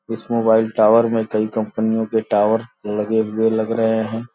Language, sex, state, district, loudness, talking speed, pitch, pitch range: Hindi, male, Uttar Pradesh, Gorakhpur, -18 LUFS, 180 wpm, 110 Hz, 110-115 Hz